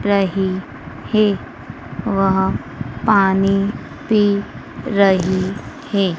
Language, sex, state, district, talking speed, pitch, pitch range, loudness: Hindi, female, Madhya Pradesh, Dhar, 70 wpm, 195 Hz, 185-205 Hz, -18 LUFS